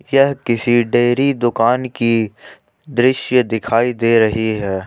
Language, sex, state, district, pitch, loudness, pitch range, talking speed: Hindi, male, Jharkhand, Ranchi, 120 Hz, -16 LUFS, 115-125 Hz, 125 wpm